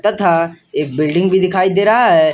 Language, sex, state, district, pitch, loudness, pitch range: Hindi, male, Jharkhand, Palamu, 185 Hz, -14 LUFS, 170-210 Hz